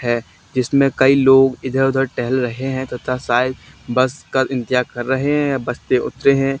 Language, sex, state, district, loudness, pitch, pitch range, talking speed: Hindi, male, Haryana, Charkhi Dadri, -18 LUFS, 130 Hz, 125-135 Hz, 190 wpm